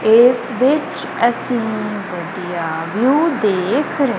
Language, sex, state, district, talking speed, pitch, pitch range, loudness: Punjabi, female, Punjab, Kapurthala, 100 wpm, 225 Hz, 190-255 Hz, -17 LUFS